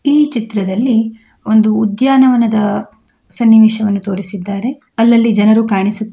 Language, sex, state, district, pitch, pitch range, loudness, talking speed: Kannada, female, Karnataka, Chamarajanagar, 220 Hz, 210-235 Hz, -12 LUFS, 90 wpm